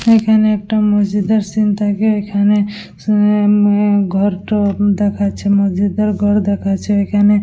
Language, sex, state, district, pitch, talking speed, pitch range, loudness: Bengali, female, West Bengal, Dakshin Dinajpur, 205 Hz, 160 wpm, 200-210 Hz, -14 LUFS